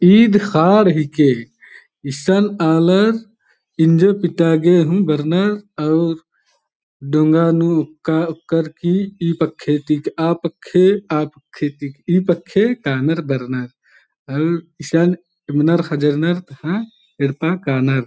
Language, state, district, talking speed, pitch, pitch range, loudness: Kurukh, Chhattisgarh, Jashpur, 115 wpm, 165 Hz, 150-180 Hz, -17 LUFS